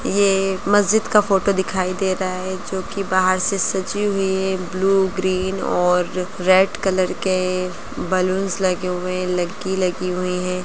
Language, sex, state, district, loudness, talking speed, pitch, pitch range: Hindi, female, Bihar, Gaya, -20 LUFS, 175 wpm, 185 Hz, 185-195 Hz